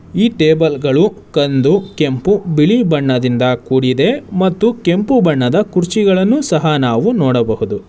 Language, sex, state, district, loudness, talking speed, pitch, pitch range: Kannada, male, Karnataka, Bangalore, -13 LUFS, 115 wpm, 160 Hz, 135-205 Hz